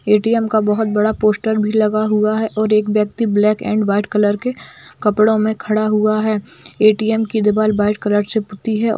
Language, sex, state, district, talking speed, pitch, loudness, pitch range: Hindi, female, Bihar, Darbhanga, 195 wpm, 215 Hz, -16 LUFS, 210-220 Hz